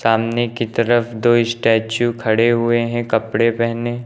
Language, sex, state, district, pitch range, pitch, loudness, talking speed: Hindi, male, Uttar Pradesh, Lucknow, 115-120 Hz, 115 Hz, -17 LUFS, 150 wpm